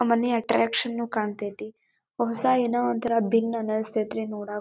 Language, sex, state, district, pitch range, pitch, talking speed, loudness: Kannada, female, Karnataka, Dharwad, 215-235 Hz, 230 Hz, 115 wpm, -26 LUFS